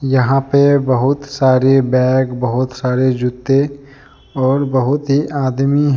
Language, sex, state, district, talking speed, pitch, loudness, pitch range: Hindi, male, Jharkhand, Deoghar, 130 wpm, 135 Hz, -15 LUFS, 130-140 Hz